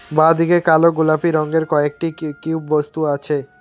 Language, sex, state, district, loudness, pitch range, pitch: Bengali, male, West Bengal, Alipurduar, -17 LUFS, 150-160 Hz, 155 Hz